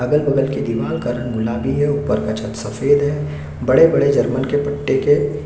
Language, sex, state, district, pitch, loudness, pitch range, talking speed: Hindi, male, Chhattisgarh, Sukma, 135 Hz, -18 LUFS, 115-145 Hz, 200 wpm